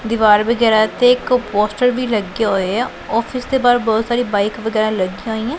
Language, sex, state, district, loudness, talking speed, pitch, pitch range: Punjabi, female, Punjab, Pathankot, -16 LUFS, 205 wpm, 225 Hz, 215-245 Hz